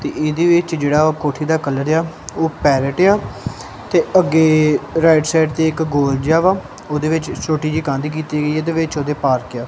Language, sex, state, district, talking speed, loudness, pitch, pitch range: Punjabi, male, Punjab, Kapurthala, 215 wpm, -16 LUFS, 155 Hz, 150-160 Hz